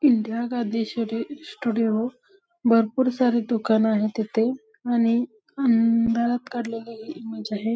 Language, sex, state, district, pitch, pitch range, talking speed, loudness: Marathi, female, Maharashtra, Solapur, 230 Hz, 225-250 Hz, 115 wpm, -24 LUFS